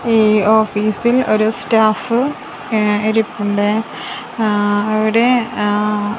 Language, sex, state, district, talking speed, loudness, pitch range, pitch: Malayalam, female, Kerala, Kasaragod, 85 wpm, -15 LUFS, 210-230 Hz, 215 Hz